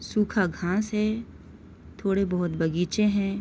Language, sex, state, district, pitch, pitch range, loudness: Hindi, female, Jharkhand, Sahebganj, 200 Hz, 180-210 Hz, -26 LUFS